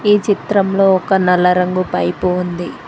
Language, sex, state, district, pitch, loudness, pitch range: Telugu, female, Telangana, Mahabubabad, 185 Hz, -15 LUFS, 180-195 Hz